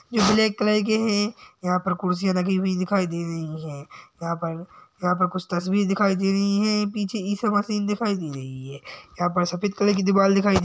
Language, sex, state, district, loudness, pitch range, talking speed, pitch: Hindi, male, Uttar Pradesh, Jalaun, -23 LUFS, 180-205 Hz, 215 wpm, 195 Hz